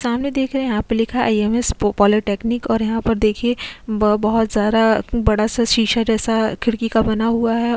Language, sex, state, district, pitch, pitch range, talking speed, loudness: Hindi, female, Uttar Pradesh, Jyotiba Phule Nagar, 225 Hz, 215-235 Hz, 170 wpm, -18 LUFS